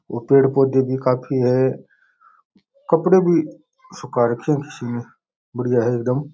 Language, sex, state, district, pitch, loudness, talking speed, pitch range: Rajasthani, male, Rajasthan, Nagaur, 135 Hz, -19 LUFS, 150 wpm, 125-165 Hz